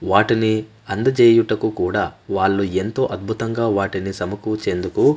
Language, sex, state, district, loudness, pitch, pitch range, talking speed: Telugu, male, Andhra Pradesh, Manyam, -19 LUFS, 110 Hz, 100-115 Hz, 95 wpm